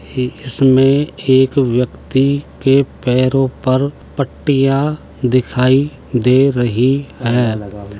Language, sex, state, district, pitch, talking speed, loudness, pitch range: Hindi, male, Uttar Pradesh, Jalaun, 130 Hz, 90 wpm, -15 LUFS, 125-135 Hz